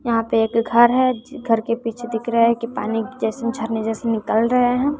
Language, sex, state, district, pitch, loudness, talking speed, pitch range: Hindi, female, Bihar, West Champaran, 230 Hz, -20 LUFS, 230 wpm, 225-240 Hz